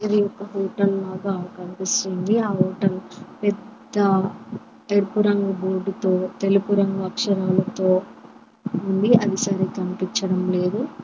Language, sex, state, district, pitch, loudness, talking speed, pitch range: Telugu, female, Telangana, Mahabubabad, 195 Hz, -22 LUFS, 105 wpm, 190-205 Hz